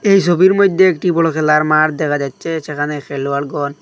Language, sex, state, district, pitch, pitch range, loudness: Bengali, male, Assam, Hailakandi, 155 Hz, 145-175 Hz, -15 LUFS